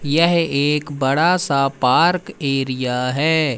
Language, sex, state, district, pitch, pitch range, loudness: Hindi, male, Madhya Pradesh, Umaria, 145 Hz, 135-165 Hz, -18 LUFS